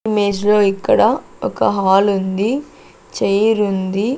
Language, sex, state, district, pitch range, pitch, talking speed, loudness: Telugu, female, Andhra Pradesh, Sri Satya Sai, 195-215 Hz, 205 Hz, 115 wpm, -16 LUFS